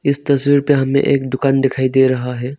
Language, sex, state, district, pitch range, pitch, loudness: Hindi, male, Arunachal Pradesh, Longding, 130-140 Hz, 135 Hz, -14 LUFS